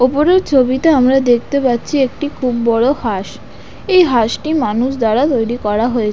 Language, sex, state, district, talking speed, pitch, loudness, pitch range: Bengali, female, West Bengal, Dakshin Dinajpur, 155 wpm, 255 Hz, -14 LUFS, 235-285 Hz